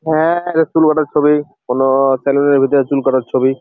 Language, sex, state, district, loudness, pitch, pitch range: Bengali, male, West Bengal, Jalpaiguri, -14 LUFS, 140 Hz, 135-155 Hz